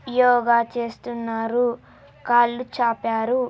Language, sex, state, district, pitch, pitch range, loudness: Telugu, female, Andhra Pradesh, Anantapur, 235 Hz, 230-245 Hz, -21 LUFS